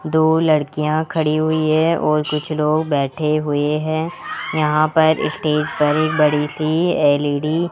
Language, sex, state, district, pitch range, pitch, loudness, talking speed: Hindi, male, Rajasthan, Jaipur, 150-160 Hz, 155 Hz, -18 LUFS, 155 wpm